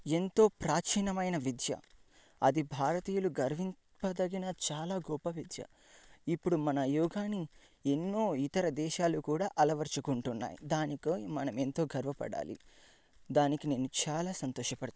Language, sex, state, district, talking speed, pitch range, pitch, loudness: Telugu, male, Andhra Pradesh, Guntur, 100 wpm, 140-185 Hz, 155 Hz, -34 LUFS